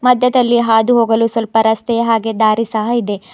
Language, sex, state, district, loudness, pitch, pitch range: Kannada, female, Karnataka, Bidar, -14 LUFS, 230 Hz, 220-240 Hz